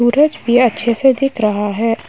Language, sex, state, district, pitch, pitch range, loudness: Hindi, female, Uttar Pradesh, Muzaffarnagar, 240 Hz, 225-265 Hz, -14 LUFS